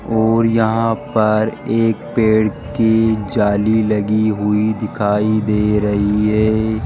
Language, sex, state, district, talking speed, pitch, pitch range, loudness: Hindi, male, Rajasthan, Jaipur, 115 wpm, 110 Hz, 105-110 Hz, -16 LUFS